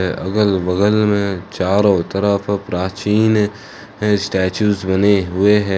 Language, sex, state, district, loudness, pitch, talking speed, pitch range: Hindi, male, Jharkhand, Ranchi, -16 LUFS, 100 Hz, 105 wpm, 95-105 Hz